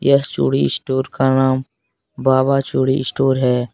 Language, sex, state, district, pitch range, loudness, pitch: Hindi, male, Jharkhand, Deoghar, 120-135 Hz, -17 LUFS, 130 Hz